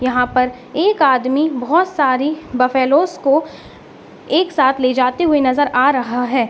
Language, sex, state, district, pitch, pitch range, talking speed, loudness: Hindi, female, Jharkhand, Sahebganj, 265 Hz, 255-300 Hz, 155 wpm, -16 LUFS